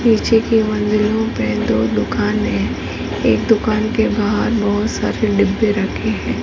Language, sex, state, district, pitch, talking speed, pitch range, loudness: Hindi, female, Rajasthan, Nagaur, 215 Hz, 150 wpm, 210-225 Hz, -17 LUFS